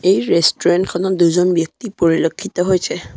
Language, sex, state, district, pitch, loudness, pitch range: Assamese, male, Assam, Sonitpur, 180 Hz, -16 LUFS, 170-190 Hz